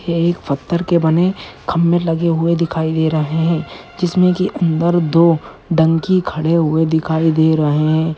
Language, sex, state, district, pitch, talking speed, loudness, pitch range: Hindi, male, Bihar, Purnia, 165 Hz, 170 wpm, -16 LUFS, 160-170 Hz